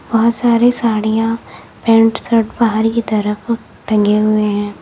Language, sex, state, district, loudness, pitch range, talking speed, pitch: Hindi, female, Uttar Pradesh, Lalitpur, -15 LUFS, 215-230 Hz, 135 wpm, 225 Hz